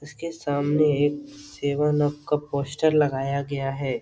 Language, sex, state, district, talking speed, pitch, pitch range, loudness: Hindi, male, Bihar, Jamui, 150 wpm, 145 Hz, 140-150 Hz, -24 LUFS